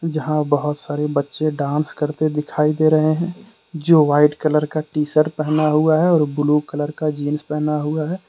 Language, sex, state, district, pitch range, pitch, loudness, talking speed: Hindi, male, Jharkhand, Deoghar, 150-155 Hz, 150 Hz, -19 LUFS, 205 wpm